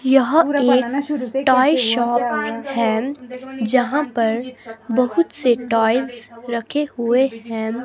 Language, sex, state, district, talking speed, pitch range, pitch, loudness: Hindi, female, Himachal Pradesh, Shimla, 100 wpm, 235-270 Hz, 250 Hz, -19 LUFS